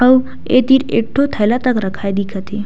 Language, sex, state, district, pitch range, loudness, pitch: Chhattisgarhi, female, Chhattisgarh, Sukma, 205-255 Hz, -15 LUFS, 230 Hz